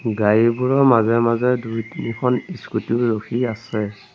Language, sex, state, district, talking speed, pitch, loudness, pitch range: Assamese, male, Assam, Sonitpur, 115 wpm, 115 Hz, -19 LUFS, 110-125 Hz